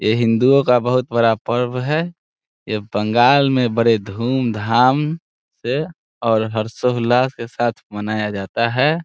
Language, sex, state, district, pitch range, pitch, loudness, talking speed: Hindi, male, Bihar, Saran, 110-130 Hz, 120 Hz, -18 LUFS, 140 wpm